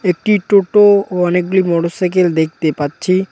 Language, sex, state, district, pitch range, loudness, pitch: Bengali, male, West Bengal, Cooch Behar, 170-195 Hz, -14 LUFS, 180 Hz